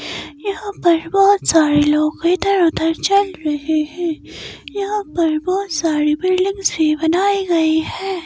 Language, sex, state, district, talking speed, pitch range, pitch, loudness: Hindi, female, Himachal Pradesh, Shimla, 130 wpm, 315-390 Hz, 340 Hz, -17 LUFS